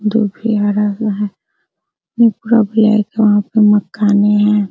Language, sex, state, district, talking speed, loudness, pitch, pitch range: Hindi, female, Bihar, Araria, 165 wpm, -14 LUFS, 210 Hz, 205-220 Hz